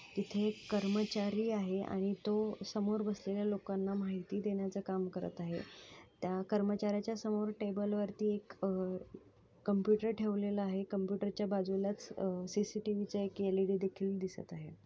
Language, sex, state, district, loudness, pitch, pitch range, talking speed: Marathi, female, Maharashtra, Sindhudurg, -37 LUFS, 200 Hz, 195-210 Hz, 140 wpm